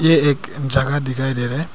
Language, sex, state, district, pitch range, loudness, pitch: Hindi, male, Arunachal Pradesh, Papum Pare, 130-145 Hz, -19 LUFS, 140 Hz